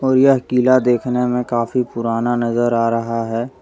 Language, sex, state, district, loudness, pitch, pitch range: Hindi, male, Jharkhand, Deoghar, -17 LUFS, 120 Hz, 115-125 Hz